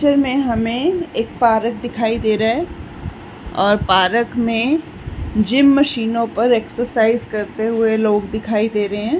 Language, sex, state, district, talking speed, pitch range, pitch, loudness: Hindi, female, Chhattisgarh, Bastar, 155 wpm, 220-245 Hz, 230 Hz, -17 LUFS